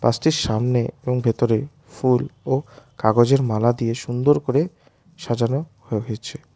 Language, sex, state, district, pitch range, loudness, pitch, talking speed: Bengali, male, West Bengal, Alipurduar, 115-145 Hz, -21 LUFS, 125 Hz, 130 wpm